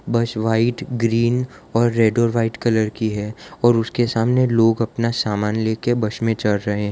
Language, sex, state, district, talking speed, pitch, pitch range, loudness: Hindi, male, Gujarat, Valsad, 190 wpm, 115 Hz, 110-120 Hz, -19 LUFS